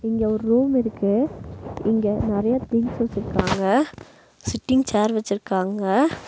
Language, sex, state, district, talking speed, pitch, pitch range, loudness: Tamil, female, Tamil Nadu, Nilgiris, 105 wpm, 220 Hz, 200-240 Hz, -22 LUFS